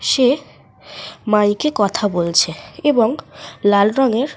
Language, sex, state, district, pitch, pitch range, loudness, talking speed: Bengali, female, Jharkhand, Sahebganj, 225 Hz, 205-270 Hz, -17 LUFS, 110 wpm